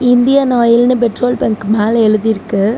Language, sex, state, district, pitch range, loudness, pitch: Tamil, female, Tamil Nadu, Namakkal, 215-245 Hz, -12 LUFS, 230 Hz